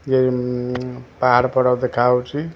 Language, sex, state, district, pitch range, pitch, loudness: Odia, male, Odisha, Khordha, 125-130 Hz, 125 Hz, -19 LUFS